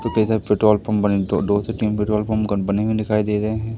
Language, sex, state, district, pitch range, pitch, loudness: Hindi, male, Madhya Pradesh, Katni, 105-110 Hz, 105 Hz, -20 LUFS